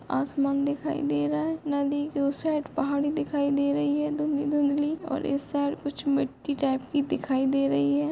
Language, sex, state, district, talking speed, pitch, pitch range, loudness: Hindi, female, Chhattisgarh, Korba, 200 wpm, 285 Hz, 280-295 Hz, -27 LUFS